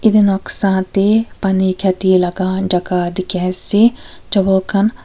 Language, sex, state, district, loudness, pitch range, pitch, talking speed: Nagamese, female, Nagaland, Kohima, -15 LUFS, 185-200 Hz, 190 Hz, 130 wpm